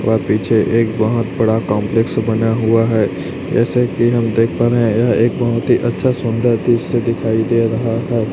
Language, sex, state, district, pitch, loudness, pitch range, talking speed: Hindi, male, Chhattisgarh, Raipur, 115 Hz, -16 LUFS, 110-120 Hz, 195 wpm